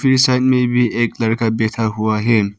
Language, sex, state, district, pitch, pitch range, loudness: Hindi, male, Arunachal Pradesh, Papum Pare, 115 Hz, 110-125 Hz, -16 LUFS